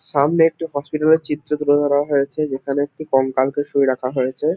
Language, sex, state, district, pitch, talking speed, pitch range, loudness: Bengali, male, West Bengal, North 24 Parganas, 145 Hz, 185 wpm, 135-150 Hz, -19 LUFS